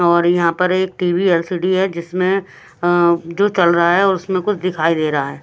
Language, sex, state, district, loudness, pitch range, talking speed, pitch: Hindi, female, Himachal Pradesh, Shimla, -16 LUFS, 170-185 Hz, 185 wpm, 175 Hz